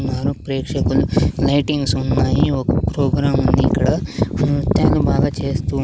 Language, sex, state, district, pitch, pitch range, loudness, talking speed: Telugu, male, Andhra Pradesh, Sri Satya Sai, 135 Hz, 130-140 Hz, -18 LUFS, 115 wpm